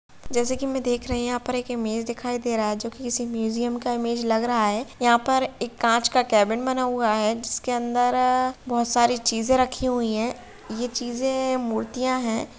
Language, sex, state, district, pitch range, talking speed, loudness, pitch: Hindi, female, Bihar, Gopalganj, 230-250 Hz, 220 wpm, -24 LUFS, 240 Hz